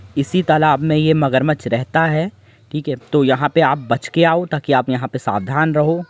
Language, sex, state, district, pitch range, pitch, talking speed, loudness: Hindi, male, Uttar Pradesh, Jyotiba Phule Nagar, 130-160 Hz, 150 Hz, 215 wpm, -17 LUFS